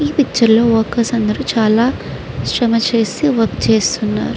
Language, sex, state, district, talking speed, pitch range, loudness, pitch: Telugu, female, Andhra Pradesh, Srikakulam, 125 wpm, 220-245 Hz, -15 LUFS, 230 Hz